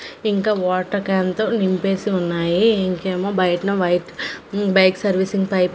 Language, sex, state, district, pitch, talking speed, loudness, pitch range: Telugu, female, Andhra Pradesh, Manyam, 190 Hz, 135 wpm, -19 LUFS, 185-200 Hz